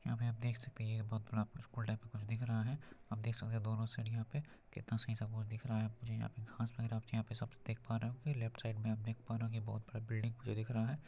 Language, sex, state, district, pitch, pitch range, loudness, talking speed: Hindi, male, Bihar, Purnia, 115 Hz, 110-120 Hz, -43 LUFS, 335 wpm